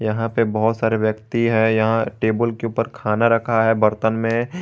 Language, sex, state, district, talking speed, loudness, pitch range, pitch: Hindi, male, Jharkhand, Garhwa, 195 wpm, -19 LUFS, 110-115 Hz, 115 Hz